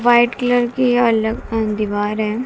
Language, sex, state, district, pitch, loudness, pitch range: Hindi, female, Haryana, Jhajjar, 230 Hz, -17 LUFS, 215-245 Hz